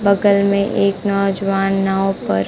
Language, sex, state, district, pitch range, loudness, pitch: Hindi, female, Bihar, Kaimur, 195-200 Hz, -16 LUFS, 200 Hz